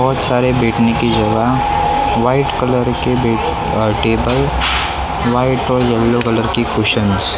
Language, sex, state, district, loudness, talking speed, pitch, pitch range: Hindi, male, Maharashtra, Mumbai Suburban, -14 LUFS, 145 wpm, 120 Hz, 115-125 Hz